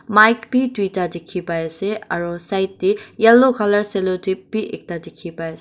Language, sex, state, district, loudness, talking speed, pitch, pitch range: Nagamese, female, Nagaland, Dimapur, -19 LUFS, 180 wpm, 195 Hz, 175-215 Hz